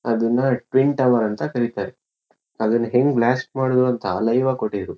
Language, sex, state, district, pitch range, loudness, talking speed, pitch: Kannada, male, Karnataka, Shimoga, 115-130 Hz, -20 LUFS, 155 wpm, 125 Hz